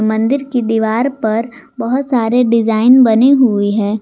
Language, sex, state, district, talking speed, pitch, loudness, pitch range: Hindi, female, Jharkhand, Garhwa, 150 wpm, 230 Hz, -13 LUFS, 220-255 Hz